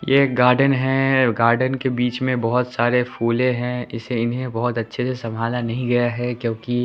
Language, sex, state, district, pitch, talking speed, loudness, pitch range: Hindi, male, Chandigarh, Chandigarh, 125 Hz, 190 wpm, -20 LUFS, 115-130 Hz